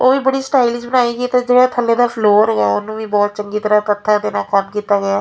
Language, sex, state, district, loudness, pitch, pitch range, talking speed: Punjabi, female, Punjab, Fazilka, -15 LUFS, 215 Hz, 205-245 Hz, 275 wpm